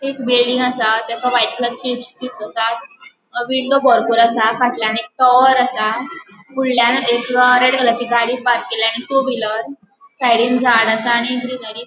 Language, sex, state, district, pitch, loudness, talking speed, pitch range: Konkani, female, Goa, North and South Goa, 245 Hz, -15 LUFS, 170 wpm, 230-255 Hz